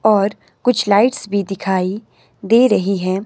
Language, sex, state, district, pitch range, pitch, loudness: Hindi, male, Himachal Pradesh, Shimla, 195-220 Hz, 200 Hz, -16 LUFS